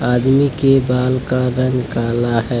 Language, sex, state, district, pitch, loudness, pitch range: Hindi, male, Jharkhand, Deoghar, 125 Hz, -16 LUFS, 120-130 Hz